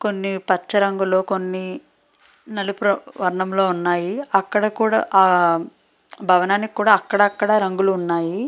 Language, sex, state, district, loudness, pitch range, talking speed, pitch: Telugu, female, Andhra Pradesh, Srikakulam, -19 LUFS, 185-205 Hz, 105 wpm, 195 Hz